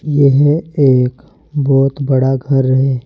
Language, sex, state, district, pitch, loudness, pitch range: Hindi, male, Uttar Pradesh, Saharanpur, 135 Hz, -13 LUFS, 130-145 Hz